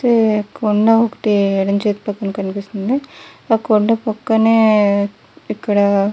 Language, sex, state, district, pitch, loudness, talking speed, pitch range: Telugu, female, Andhra Pradesh, Guntur, 210 Hz, -16 LUFS, 110 wpm, 200-225 Hz